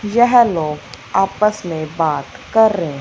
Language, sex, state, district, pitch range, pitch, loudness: Hindi, female, Punjab, Fazilka, 155-215 Hz, 190 Hz, -16 LUFS